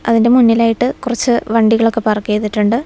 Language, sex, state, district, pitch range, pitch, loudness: Malayalam, female, Kerala, Wayanad, 220-240 Hz, 230 Hz, -13 LUFS